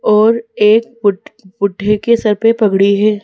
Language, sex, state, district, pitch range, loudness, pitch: Hindi, female, Madhya Pradesh, Bhopal, 200-225 Hz, -13 LUFS, 210 Hz